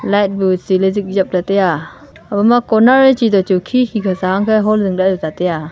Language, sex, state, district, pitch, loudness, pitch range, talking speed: Wancho, female, Arunachal Pradesh, Longding, 195 Hz, -14 LUFS, 185-215 Hz, 260 wpm